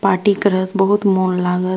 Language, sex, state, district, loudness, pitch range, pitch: Maithili, female, Bihar, Purnia, -16 LUFS, 185-200 Hz, 195 Hz